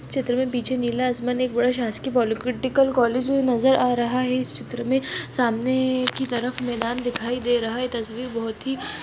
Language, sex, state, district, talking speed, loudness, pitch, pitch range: Hindi, female, Chhattisgarh, Bastar, 195 wpm, -23 LUFS, 250 Hz, 240-255 Hz